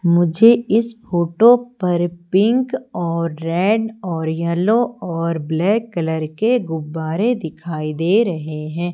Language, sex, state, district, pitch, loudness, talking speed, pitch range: Hindi, female, Madhya Pradesh, Umaria, 175 Hz, -18 LUFS, 120 wpm, 165-225 Hz